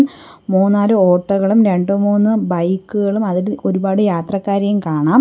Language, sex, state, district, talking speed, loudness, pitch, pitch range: Malayalam, female, Kerala, Kollam, 90 wpm, -15 LUFS, 200 Hz, 190-205 Hz